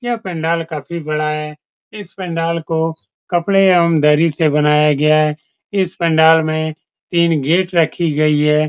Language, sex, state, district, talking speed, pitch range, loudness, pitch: Hindi, male, Bihar, Supaul, 165 wpm, 150-170 Hz, -16 LUFS, 160 Hz